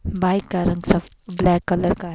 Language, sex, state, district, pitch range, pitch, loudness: Hindi, female, Himachal Pradesh, Shimla, 175-185 Hz, 180 Hz, -20 LUFS